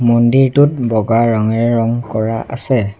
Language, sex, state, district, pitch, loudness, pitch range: Assamese, male, Assam, Sonitpur, 115 Hz, -14 LUFS, 115-120 Hz